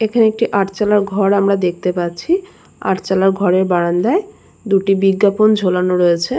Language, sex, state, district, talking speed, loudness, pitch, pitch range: Bengali, female, West Bengal, Jalpaiguri, 130 wpm, -15 LUFS, 195 Hz, 180-215 Hz